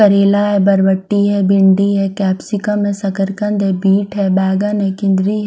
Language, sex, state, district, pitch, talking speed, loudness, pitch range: Hindi, female, Bihar, Kaimur, 200 Hz, 185 wpm, -14 LUFS, 195-205 Hz